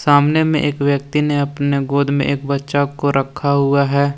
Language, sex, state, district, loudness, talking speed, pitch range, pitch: Hindi, male, Jharkhand, Deoghar, -17 LUFS, 200 wpm, 140-145 Hz, 140 Hz